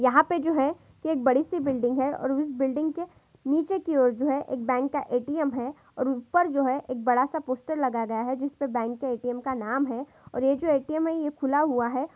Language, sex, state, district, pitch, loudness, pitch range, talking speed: Maithili, female, Bihar, Supaul, 275 Hz, -27 LUFS, 255-300 Hz, 235 wpm